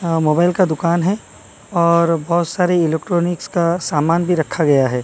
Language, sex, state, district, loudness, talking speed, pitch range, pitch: Hindi, male, Odisha, Malkangiri, -17 LUFS, 180 wpm, 160-175 Hz, 170 Hz